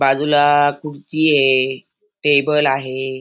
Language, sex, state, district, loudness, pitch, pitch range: Marathi, female, Maharashtra, Aurangabad, -16 LUFS, 145 Hz, 135-150 Hz